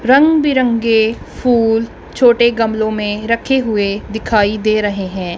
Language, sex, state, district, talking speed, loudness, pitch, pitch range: Hindi, female, Punjab, Kapurthala, 135 wpm, -14 LUFS, 225 Hz, 210-240 Hz